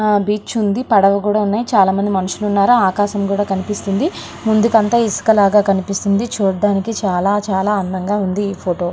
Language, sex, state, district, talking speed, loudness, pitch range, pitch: Telugu, female, Andhra Pradesh, Srikakulam, 150 wpm, -16 LUFS, 195-210 Hz, 205 Hz